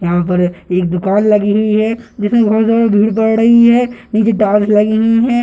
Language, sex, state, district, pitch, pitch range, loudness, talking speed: Hindi, male, Bihar, Gaya, 215 Hz, 205-225 Hz, -12 LUFS, 190 wpm